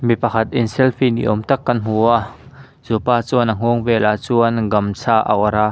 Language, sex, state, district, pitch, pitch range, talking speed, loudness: Mizo, male, Mizoram, Aizawl, 115 Hz, 110-120 Hz, 220 wpm, -17 LUFS